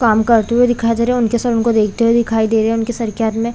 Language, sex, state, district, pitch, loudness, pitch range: Hindi, female, Chhattisgarh, Bilaspur, 230 Hz, -15 LUFS, 225-235 Hz